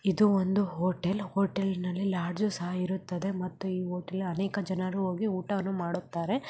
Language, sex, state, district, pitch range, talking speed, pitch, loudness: Kannada, male, Karnataka, Raichur, 180-195 Hz, 150 wpm, 190 Hz, -31 LUFS